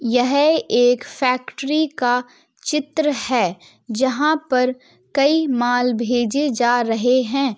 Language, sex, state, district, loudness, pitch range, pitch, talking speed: Hindi, female, Uttar Pradesh, Jalaun, -19 LUFS, 245-290 Hz, 255 Hz, 110 wpm